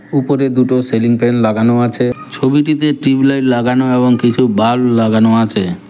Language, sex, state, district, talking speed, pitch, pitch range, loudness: Bengali, male, West Bengal, Cooch Behar, 145 wpm, 125 Hz, 120-135 Hz, -13 LUFS